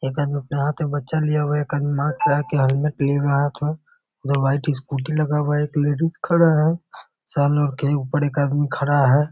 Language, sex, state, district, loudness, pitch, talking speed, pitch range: Hindi, male, Bihar, Muzaffarpur, -21 LUFS, 145 Hz, 225 wpm, 140-150 Hz